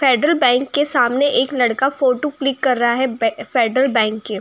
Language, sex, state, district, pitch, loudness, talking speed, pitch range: Hindi, female, Uttar Pradesh, Jyotiba Phule Nagar, 260 Hz, -17 LUFS, 215 wpm, 240-275 Hz